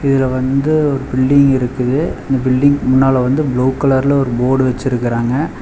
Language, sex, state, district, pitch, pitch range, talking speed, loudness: Tamil, male, Tamil Nadu, Chennai, 130 Hz, 130-140 Hz, 150 wpm, -14 LUFS